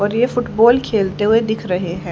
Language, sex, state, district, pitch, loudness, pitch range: Hindi, female, Haryana, Charkhi Dadri, 215 Hz, -16 LUFS, 190-230 Hz